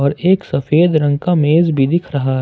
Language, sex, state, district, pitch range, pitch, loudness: Hindi, male, Jharkhand, Ranchi, 140-170 Hz, 155 Hz, -14 LUFS